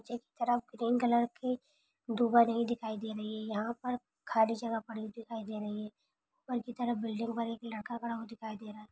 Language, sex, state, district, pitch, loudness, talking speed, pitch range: Hindi, female, Maharashtra, Dhule, 230 Hz, -35 LUFS, 210 wpm, 220-240 Hz